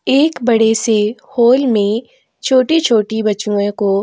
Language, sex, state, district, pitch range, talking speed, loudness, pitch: Hindi, female, Chhattisgarh, Korba, 210-260 Hz, 105 wpm, -14 LUFS, 225 Hz